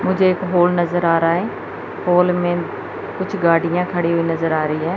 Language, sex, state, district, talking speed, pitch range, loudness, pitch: Hindi, female, Chandigarh, Chandigarh, 205 wpm, 165-180 Hz, -18 LUFS, 175 Hz